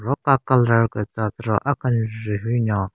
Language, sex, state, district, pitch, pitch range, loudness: Rengma, female, Nagaland, Kohima, 115 Hz, 105-130 Hz, -21 LUFS